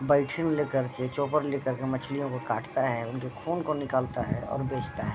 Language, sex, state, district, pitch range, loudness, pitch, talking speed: Hindi, male, Bihar, Vaishali, 125-145 Hz, -30 LUFS, 135 Hz, 175 wpm